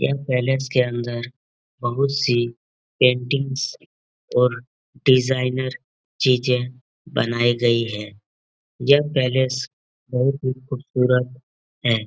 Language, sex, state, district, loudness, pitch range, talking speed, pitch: Hindi, male, Uttar Pradesh, Etah, -21 LUFS, 120-130 Hz, 95 wpm, 125 Hz